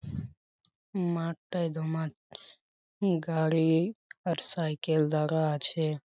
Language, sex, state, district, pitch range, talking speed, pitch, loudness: Bengali, male, West Bengal, Paschim Medinipur, 155-170 Hz, 80 wpm, 160 Hz, -30 LUFS